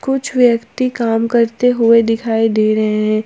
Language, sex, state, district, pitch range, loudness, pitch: Hindi, female, Jharkhand, Palamu, 225-245 Hz, -14 LUFS, 230 Hz